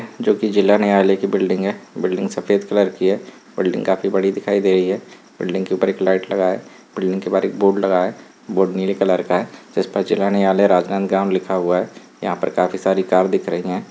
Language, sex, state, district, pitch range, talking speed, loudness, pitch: Hindi, male, Chhattisgarh, Rajnandgaon, 95-100 Hz, 240 wpm, -18 LUFS, 95 Hz